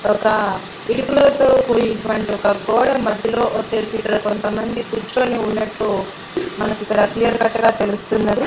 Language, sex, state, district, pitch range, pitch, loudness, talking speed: Telugu, female, Andhra Pradesh, Annamaya, 210-235 Hz, 220 Hz, -18 LUFS, 120 wpm